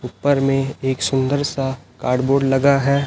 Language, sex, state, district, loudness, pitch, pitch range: Hindi, male, Chhattisgarh, Raipur, -19 LUFS, 135 Hz, 130-140 Hz